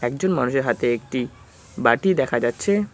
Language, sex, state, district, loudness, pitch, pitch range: Bengali, male, West Bengal, Cooch Behar, -21 LUFS, 125 Hz, 120-180 Hz